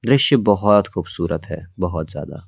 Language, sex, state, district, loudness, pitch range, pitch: Hindi, male, Delhi, New Delhi, -19 LUFS, 85-105 Hz, 90 Hz